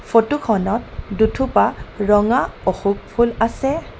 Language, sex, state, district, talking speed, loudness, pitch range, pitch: Assamese, female, Assam, Kamrup Metropolitan, 105 wpm, -19 LUFS, 210-255 Hz, 225 Hz